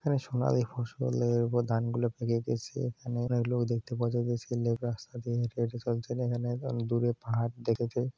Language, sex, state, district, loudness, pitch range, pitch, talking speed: Bengali, male, West Bengal, Purulia, -32 LUFS, 115-120 Hz, 120 Hz, 175 wpm